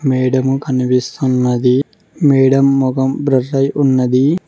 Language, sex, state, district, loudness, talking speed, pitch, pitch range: Telugu, male, Telangana, Mahabubabad, -14 LUFS, 95 wpm, 135 Hz, 130-140 Hz